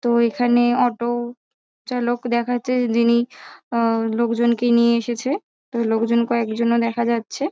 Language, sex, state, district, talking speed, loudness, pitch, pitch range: Bengali, female, West Bengal, North 24 Parganas, 135 wpm, -20 LUFS, 235 Hz, 235-245 Hz